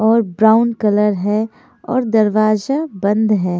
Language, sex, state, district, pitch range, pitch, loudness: Hindi, female, Haryana, Charkhi Dadri, 210-230 Hz, 220 Hz, -15 LUFS